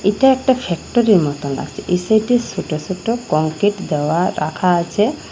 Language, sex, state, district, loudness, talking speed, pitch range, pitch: Bengali, female, Assam, Hailakandi, -17 LUFS, 145 wpm, 160-225 Hz, 185 Hz